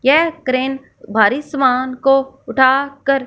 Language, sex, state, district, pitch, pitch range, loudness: Hindi, female, Punjab, Fazilka, 270 Hz, 255-275 Hz, -16 LUFS